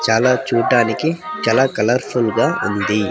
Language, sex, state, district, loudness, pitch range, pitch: Telugu, female, Andhra Pradesh, Sri Satya Sai, -17 LUFS, 105-130 Hz, 115 Hz